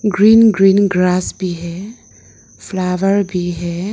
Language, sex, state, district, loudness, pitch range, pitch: Hindi, female, Arunachal Pradesh, Lower Dibang Valley, -14 LUFS, 175-200 Hz, 185 Hz